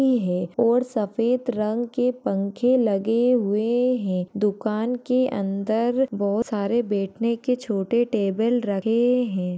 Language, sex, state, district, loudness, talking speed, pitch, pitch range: Hindi, female, Uttar Pradesh, Budaun, -23 LUFS, 125 wpm, 230 Hz, 200-245 Hz